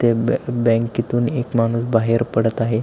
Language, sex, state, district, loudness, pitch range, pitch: Marathi, male, Maharashtra, Aurangabad, -19 LUFS, 115-120 Hz, 115 Hz